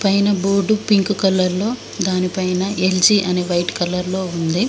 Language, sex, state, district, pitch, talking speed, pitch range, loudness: Telugu, female, Telangana, Mahabubabad, 190 Hz, 165 wpm, 180-200 Hz, -18 LUFS